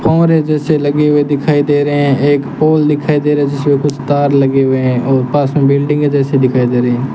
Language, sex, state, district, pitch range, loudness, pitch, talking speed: Hindi, male, Rajasthan, Bikaner, 135-150 Hz, -12 LUFS, 145 Hz, 245 wpm